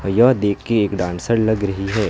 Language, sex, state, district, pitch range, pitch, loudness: Hindi, male, West Bengal, Alipurduar, 95-110 Hz, 100 Hz, -18 LUFS